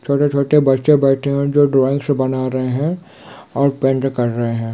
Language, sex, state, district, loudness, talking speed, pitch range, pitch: Hindi, male, Bihar, Kishanganj, -16 LUFS, 190 wpm, 130-140 Hz, 135 Hz